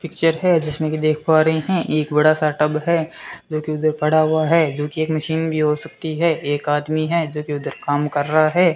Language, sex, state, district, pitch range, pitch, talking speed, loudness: Hindi, male, Rajasthan, Bikaner, 150-160 Hz, 155 Hz, 235 wpm, -19 LUFS